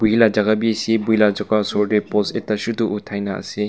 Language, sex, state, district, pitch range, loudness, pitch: Nagamese, male, Nagaland, Kohima, 105-110 Hz, -19 LUFS, 105 Hz